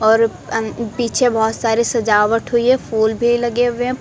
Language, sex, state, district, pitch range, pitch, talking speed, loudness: Hindi, female, Uttar Pradesh, Lucknow, 220-240 Hz, 230 Hz, 195 wpm, -17 LUFS